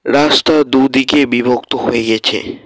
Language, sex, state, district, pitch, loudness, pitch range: Bengali, male, West Bengal, Alipurduar, 135 Hz, -12 LUFS, 120-145 Hz